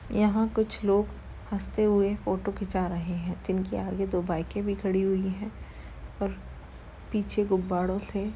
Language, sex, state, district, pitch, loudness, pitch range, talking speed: Hindi, female, Uttar Pradesh, Jalaun, 190 Hz, -29 LUFS, 180-205 Hz, 160 wpm